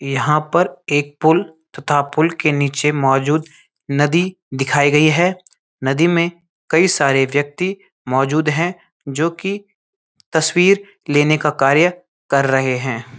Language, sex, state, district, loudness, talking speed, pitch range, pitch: Hindi, male, Uttarakhand, Uttarkashi, -17 LUFS, 130 wpm, 140-175 Hz, 155 Hz